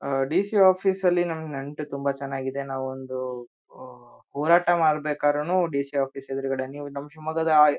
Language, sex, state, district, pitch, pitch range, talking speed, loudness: Kannada, male, Karnataka, Shimoga, 145 Hz, 135-160 Hz, 170 wpm, -25 LUFS